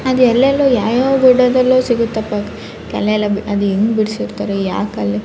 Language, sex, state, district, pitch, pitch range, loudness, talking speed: Kannada, female, Karnataka, Raichur, 225 Hz, 205-255 Hz, -15 LUFS, 150 wpm